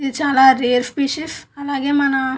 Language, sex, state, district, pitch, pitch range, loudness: Telugu, female, Andhra Pradesh, Visakhapatnam, 275 Hz, 265-285 Hz, -17 LUFS